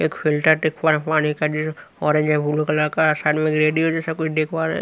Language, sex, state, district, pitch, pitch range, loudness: Hindi, male, Haryana, Rohtak, 155 Hz, 150-155 Hz, -20 LUFS